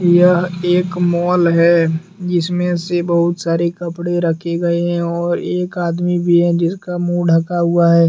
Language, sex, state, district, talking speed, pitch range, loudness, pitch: Hindi, male, Jharkhand, Deoghar, 165 wpm, 170-175 Hz, -16 LUFS, 175 Hz